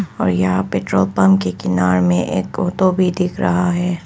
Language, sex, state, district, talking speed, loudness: Hindi, female, Arunachal Pradesh, Papum Pare, 205 wpm, -17 LUFS